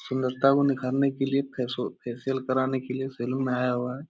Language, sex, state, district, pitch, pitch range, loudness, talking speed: Hindi, male, Bihar, Jahanabad, 130 Hz, 125-135 Hz, -27 LUFS, 190 wpm